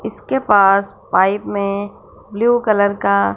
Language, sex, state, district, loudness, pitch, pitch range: Hindi, female, Punjab, Fazilka, -16 LUFS, 200 Hz, 195-210 Hz